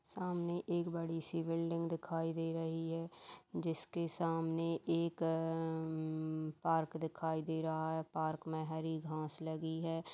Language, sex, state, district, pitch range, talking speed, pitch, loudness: Hindi, female, Uttar Pradesh, Jalaun, 160-165 Hz, 140 wpm, 165 Hz, -40 LUFS